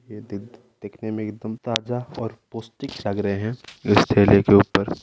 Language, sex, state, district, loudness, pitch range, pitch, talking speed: Hindi, male, Rajasthan, Nagaur, -21 LUFS, 100-115 Hz, 110 Hz, 165 wpm